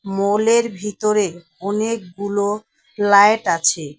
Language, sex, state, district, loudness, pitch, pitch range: Bengali, female, West Bengal, Alipurduar, -18 LUFS, 205 Hz, 190-210 Hz